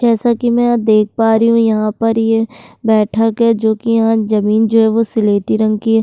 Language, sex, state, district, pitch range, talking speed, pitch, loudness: Hindi, female, Uttarakhand, Tehri Garhwal, 220-230 Hz, 240 wpm, 225 Hz, -13 LUFS